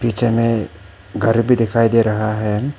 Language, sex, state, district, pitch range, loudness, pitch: Hindi, male, Arunachal Pradesh, Papum Pare, 105-115 Hz, -17 LUFS, 115 Hz